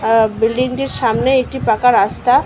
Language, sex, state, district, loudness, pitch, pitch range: Bengali, female, West Bengal, North 24 Parganas, -15 LUFS, 245 Hz, 225-260 Hz